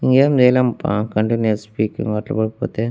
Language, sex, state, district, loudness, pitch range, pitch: Telugu, male, Andhra Pradesh, Annamaya, -18 LUFS, 105-125 Hz, 110 Hz